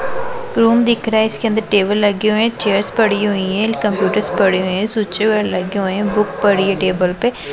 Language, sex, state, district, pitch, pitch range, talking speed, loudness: Hindi, female, Punjab, Pathankot, 210 Hz, 195-220 Hz, 205 wpm, -16 LUFS